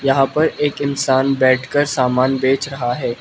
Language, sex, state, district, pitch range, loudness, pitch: Hindi, male, Manipur, Imphal West, 130-140 Hz, -17 LUFS, 135 Hz